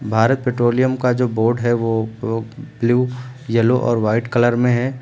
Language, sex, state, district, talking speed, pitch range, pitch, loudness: Hindi, male, Uttar Pradesh, Lucknow, 180 wpm, 115-125 Hz, 120 Hz, -18 LUFS